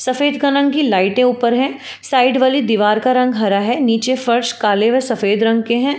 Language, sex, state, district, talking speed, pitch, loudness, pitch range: Hindi, female, Uttar Pradesh, Jalaun, 210 wpm, 250 Hz, -15 LUFS, 225-265 Hz